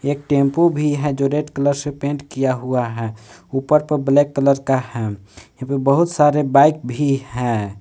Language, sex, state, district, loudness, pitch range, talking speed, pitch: Hindi, male, Jharkhand, Palamu, -18 LUFS, 125-145 Hz, 185 wpm, 140 Hz